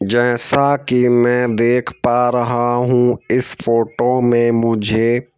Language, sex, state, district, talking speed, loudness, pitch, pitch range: Hindi, male, Madhya Pradesh, Bhopal, 125 wpm, -15 LUFS, 120 Hz, 120-125 Hz